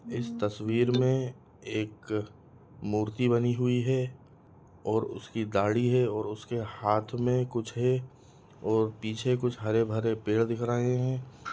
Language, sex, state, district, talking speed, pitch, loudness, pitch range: Hindi, male, Chhattisgarh, Raigarh, 135 wpm, 120 Hz, -29 LUFS, 110-125 Hz